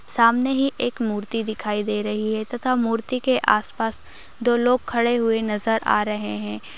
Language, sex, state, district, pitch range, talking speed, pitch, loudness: Hindi, female, Uttar Pradesh, Ghazipur, 210-245 Hz, 185 wpm, 230 Hz, -22 LUFS